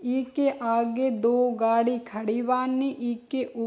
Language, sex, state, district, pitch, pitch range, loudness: Bhojpuri, female, Bihar, East Champaran, 245 Hz, 230-260 Hz, -26 LUFS